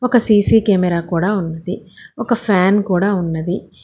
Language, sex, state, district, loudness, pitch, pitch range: Telugu, female, Telangana, Hyderabad, -16 LUFS, 195 Hz, 175-210 Hz